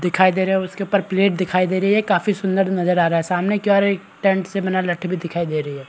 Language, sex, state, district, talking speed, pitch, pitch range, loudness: Hindi, male, Bihar, Araria, 295 wpm, 185 Hz, 180-195 Hz, -19 LUFS